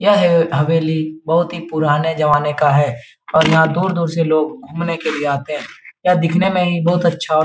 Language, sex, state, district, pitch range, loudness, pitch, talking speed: Hindi, male, Bihar, Jahanabad, 150-170 Hz, -16 LUFS, 160 Hz, 210 wpm